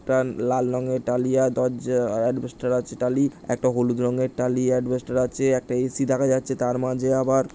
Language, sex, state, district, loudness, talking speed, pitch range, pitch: Bengali, male, West Bengal, Jhargram, -23 LUFS, 175 wpm, 125-130 Hz, 125 Hz